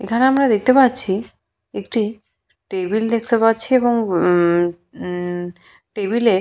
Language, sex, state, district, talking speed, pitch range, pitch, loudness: Bengali, female, West Bengal, Purulia, 110 wpm, 180-235 Hz, 220 Hz, -18 LUFS